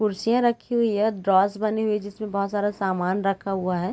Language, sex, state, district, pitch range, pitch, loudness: Hindi, female, Bihar, Sitamarhi, 195-215 Hz, 205 Hz, -24 LUFS